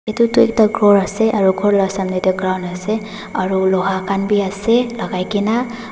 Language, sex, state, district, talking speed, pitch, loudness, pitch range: Nagamese, female, Nagaland, Dimapur, 195 wpm, 205 Hz, -16 LUFS, 190-220 Hz